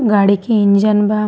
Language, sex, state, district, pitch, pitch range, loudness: Bhojpuri, female, Bihar, East Champaran, 210 Hz, 200-215 Hz, -13 LUFS